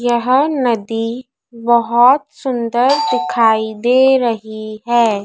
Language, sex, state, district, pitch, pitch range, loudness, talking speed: Hindi, female, Madhya Pradesh, Dhar, 235 Hz, 225-250 Hz, -15 LUFS, 90 wpm